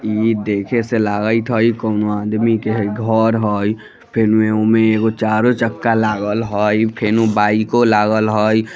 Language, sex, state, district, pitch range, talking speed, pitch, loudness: Bajjika, female, Bihar, Vaishali, 105-115 Hz, 135 wpm, 110 Hz, -16 LUFS